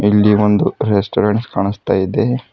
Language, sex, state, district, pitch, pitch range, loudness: Kannada, female, Karnataka, Bidar, 105 Hz, 100-110 Hz, -15 LUFS